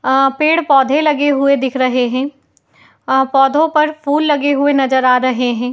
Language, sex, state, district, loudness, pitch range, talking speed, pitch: Hindi, female, Uttar Pradesh, Etah, -13 LUFS, 260-295 Hz, 210 wpm, 275 Hz